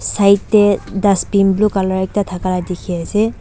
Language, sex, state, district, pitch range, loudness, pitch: Nagamese, female, Nagaland, Dimapur, 185-205 Hz, -15 LUFS, 195 Hz